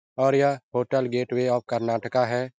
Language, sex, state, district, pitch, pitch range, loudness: Hindi, male, Bihar, Jahanabad, 125 Hz, 125-130 Hz, -24 LUFS